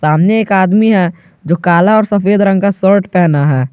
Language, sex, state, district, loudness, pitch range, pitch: Hindi, male, Jharkhand, Garhwa, -11 LUFS, 170-200 Hz, 190 Hz